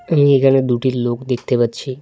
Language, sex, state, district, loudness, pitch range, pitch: Bengali, male, West Bengal, Cooch Behar, -16 LUFS, 120-135 Hz, 130 Hz